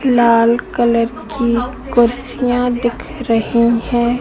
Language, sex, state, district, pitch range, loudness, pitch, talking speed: Hindi, female, Madhya Pradesh, Katni, 235-245 Hz, -15 LUFS, 240 Hz, 100 wpm